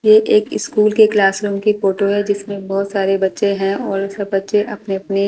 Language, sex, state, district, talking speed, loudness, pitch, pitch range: Hindi, female, Delhi, New Delhi, 195 wpm, -16 LUFS, 200 Hz, 195-210 Hz